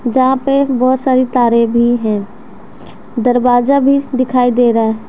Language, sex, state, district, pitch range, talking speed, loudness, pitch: Hindi, female, Jharkhand, Deoghar, 235-260 Hz, 140 wpm, -13 LUFS, 245 Hz